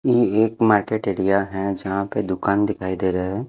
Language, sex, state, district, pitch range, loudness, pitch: Hindi, male, Haryana, Jhajjar, 95-110 Hz, -21 LUFS, 100 Hz